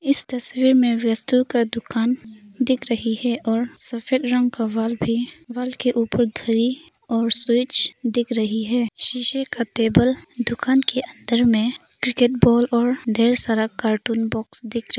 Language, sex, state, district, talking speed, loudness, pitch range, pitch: Hindi, female, Arunachal Pradesh, Papum Pare, 155 wpm, -19 LUFS, 230-250 Hz, 240 Hz